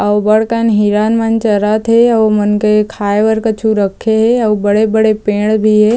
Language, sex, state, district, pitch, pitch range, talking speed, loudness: Chhattisgarhi, female, Chhattisgarh, Jashpur, 215 Hz, 210-220 Hz, 210 wpm, -12 LUFS